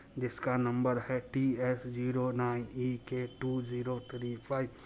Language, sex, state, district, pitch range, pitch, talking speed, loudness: Hindi, male, Bihar, Muzaffarpur, 125-130 Hz, 125 Hz, 175 wpm, -35 LUFS